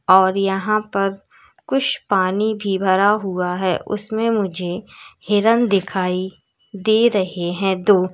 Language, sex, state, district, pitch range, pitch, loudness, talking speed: Hindi, female, Uttar Pradesh, Lalitpur, 185-215 Hz, 195 Hz, -19 LUFS, 125 wpm